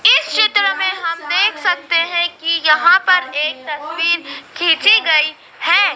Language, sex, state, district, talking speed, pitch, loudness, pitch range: Hindi, female, Madhya Pradesh, Dhar, 150 wpm, 335 Hz, -14 LUFS, 310-370 Hz